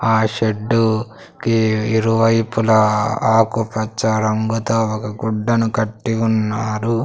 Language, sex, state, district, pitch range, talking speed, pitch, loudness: Telugu, male, Andhra Pradesh, Sri Satya Sai, 110-115 Hz, 95 wpm, 110 Hz, -18 LUFS